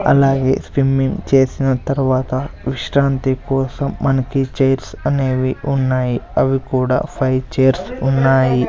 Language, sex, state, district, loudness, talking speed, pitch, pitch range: Telugu, male, Andhra Pradesh, Sri Satya Sai, -17 LUFS, 105 wpm, 135 Hz, 130-135 Hz